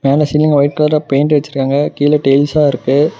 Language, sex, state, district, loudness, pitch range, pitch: Tamil, male, Tamil Nadu, Namakkal, -13 LUFS, 140-150 Hz, 145 Hz